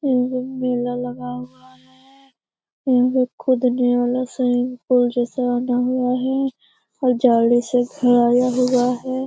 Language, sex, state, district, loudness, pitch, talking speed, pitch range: Hindi, female, Bihar, Jamui, -19 LUFS, 250 Hz, 140 wpm, 245-255 Hz